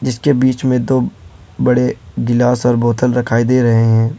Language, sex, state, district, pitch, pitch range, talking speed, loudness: Hindi, male, Jharkhand, Ranchi, 125 Hz, 120-130 Hz, 170 wpm, -14 LUFS